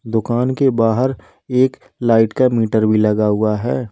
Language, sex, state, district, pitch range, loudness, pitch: Hindi, male, Uttar Pradesh, Lalitpur, 110-130 Hz, -16 LUFS, 115 Hz